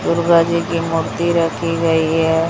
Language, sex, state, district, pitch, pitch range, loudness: Hindi, male, Chhattisgarh, Raipur, 165 Hz, 165-170 Hz, -16 LUFS